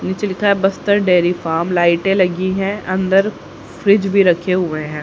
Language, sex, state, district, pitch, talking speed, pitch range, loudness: Hindi, female, Haryana, Charkhi Dadri, 185 Hz, 180 wpm, 175-195 Hz, -16 LUFS